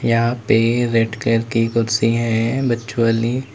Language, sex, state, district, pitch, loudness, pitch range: Hindi, male, Uttar Pradesh, Saharanpur, 115 Hz, -18 LUFS, 115-120 Hz